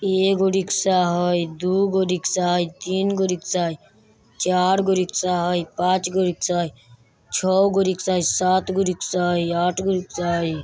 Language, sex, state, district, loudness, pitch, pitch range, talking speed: Bajjika, male, Bihar, Vaishali, -21 LUFS, 180 Hz, 175-190 Hz, 135 wpm